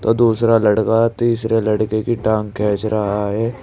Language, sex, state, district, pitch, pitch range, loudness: Hindi, male, Uttar Pradesh, Saharanpur, 110 Hz, 105-115 Hz, -17 LUFS